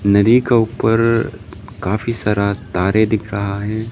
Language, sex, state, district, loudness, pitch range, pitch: Hindi, male, Arunachal Pradesh, Lower Dibang Valley, -17 LUFS, 100-115 Hz, 110 Hz